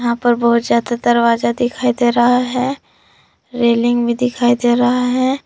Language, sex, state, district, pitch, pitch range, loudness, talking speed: Hindi, female, Jharkhand, Palamu, 240 Hz, 235-250 Hz, -15 LUFS, 165 wpm